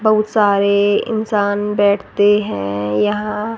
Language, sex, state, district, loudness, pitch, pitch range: Hindi, female, Haryana, Rohtak, -16 LUFS, 205 Hz, 200-210 Hz